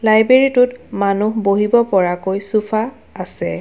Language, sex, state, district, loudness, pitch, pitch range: Assamese, female, Assam, Kamrup Metropolitan, -15 LUFS, 215 Hz, 195-235 Hz